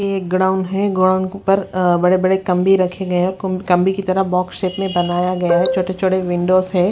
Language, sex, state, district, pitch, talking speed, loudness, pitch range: Hindi, female, Haryana, Rohtak, 185 Hz, 225 wpm, -17 LUFS, 180-190 Hz